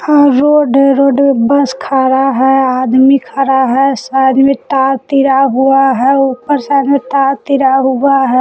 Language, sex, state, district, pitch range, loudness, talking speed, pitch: Hindi, female, Jharkhand, Palamu, 265-275 Hz, -10 LUFS, 165 wpm, 270 Hz